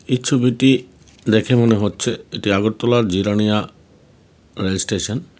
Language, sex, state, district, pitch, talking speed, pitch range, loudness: Bengali, male, Tripura, West Tripura, 110 Hz, 110 wpm, 100-125 Hz, -18 LUFS